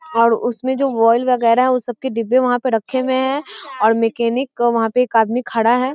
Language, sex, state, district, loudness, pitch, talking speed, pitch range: Hindi, female, Bihar, East Champaran, -17 LUFS, 245 Hz, 230 wpm, 230-260 Hz